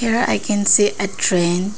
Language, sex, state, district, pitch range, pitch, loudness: English, female, Arunachal Pradesh, Lower Dibang Valley, 190-210 Hz, 205 Hz, -16 LUFS